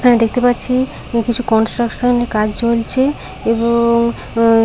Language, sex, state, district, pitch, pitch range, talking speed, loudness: Bengali, female, West Bengal, Paschim Medinipur, 235 Hz, 230-245 Hz, 130 wpm, -15 LUFS